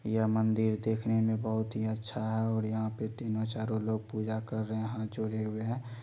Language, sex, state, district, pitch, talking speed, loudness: Maithili, male, Bihar, Supaul, 110 Hz, 220 wpm, -33 LUFS